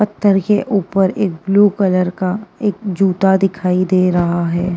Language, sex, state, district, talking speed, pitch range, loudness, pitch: Hindi, female, Uttar Pradesh, Jyotiba Phule Nagar, 150 wpm, 185-200 Hz, -15 LUFS, 190 Hz